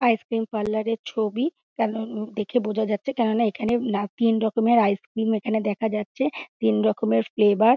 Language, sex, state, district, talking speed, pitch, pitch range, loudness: Bengali, female, West Bengal, Dakshin Dinajpur, 185 wpm, 220 Hz, 210-230 Hz, -24 LUFS